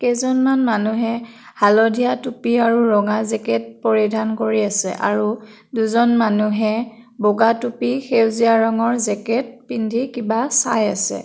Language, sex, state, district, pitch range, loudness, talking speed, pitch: Assamese, female, Assam, Kamrup Metropolitan, 215-240 Hz, -18 LUFS, 115 wpm, 225 Hz